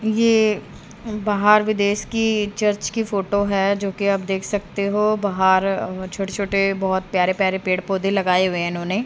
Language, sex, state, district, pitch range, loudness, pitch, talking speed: Hindi, female, Haryana, Jhajjar, 190-210 Hz, -20 LUFS, 200 Hz, 165 wpm